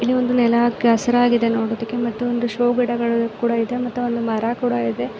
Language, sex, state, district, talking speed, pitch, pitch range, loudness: Kannada, female, Karnataka, Mysore, 185 wpm, 235 Hz, 230-245 Hz, -20 LUFS